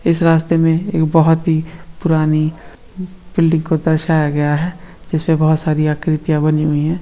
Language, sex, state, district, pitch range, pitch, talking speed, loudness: Marwari, female, Rajasthan, Nagaur, 155-165 Hz, 160 Hz, 160 wpm, -15 LUFS